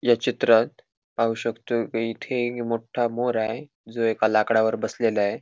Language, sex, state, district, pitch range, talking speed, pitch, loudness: Marathi, male, Goa, North and South Goa, 110-120 Hz, 165 wpm, 115 Hz, -24 LUFS